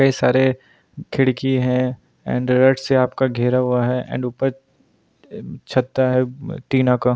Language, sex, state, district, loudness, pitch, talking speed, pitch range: Hindi, male, Goa, North and South Goa, -19 LUFS, 130 Hz, 140 wpm, 125-130 Hz